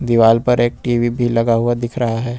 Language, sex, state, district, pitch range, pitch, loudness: Hindi, male, Jharkhand, Ranchi, 115-120 Hz, 120 Hz, -16 LUFS